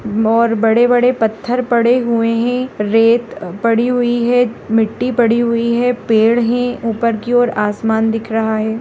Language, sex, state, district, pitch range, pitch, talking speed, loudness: Hindi, female, Rajasthan, Nagaur, 225-245 Hz, 230 Hz, 165 wpm, -15 LUFS